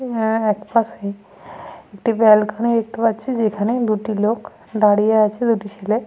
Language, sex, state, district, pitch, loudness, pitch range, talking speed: Bengali, female, Jharkhand, Sahebganj, 220 Hz, -18 LUFS, 210-230 Hz, 140 wpm